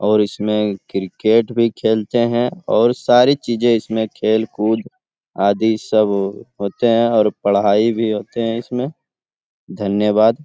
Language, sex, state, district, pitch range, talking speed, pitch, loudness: Hindi, male, Bihar, Lakhisarai, 105-115 Hz, 125 wpm, 110 Hz, -17 LUFS